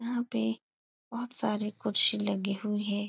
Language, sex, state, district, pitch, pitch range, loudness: Hindi, female, Uttar Pradesh, Etah, 210 Hz, 205-235 Hz, -28 LUFS